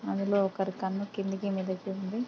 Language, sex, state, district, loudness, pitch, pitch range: Telugu, female, Andhra Pradesh, Krishna, -32 LUFS, 195 Hz, 190-200 Hz